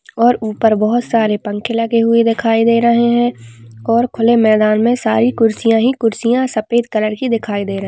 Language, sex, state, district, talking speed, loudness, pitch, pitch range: Hindi, female, Maharashtra, Nagpur, 190 wpm, -14 LUFS, 230 Hz, 215-235 Hz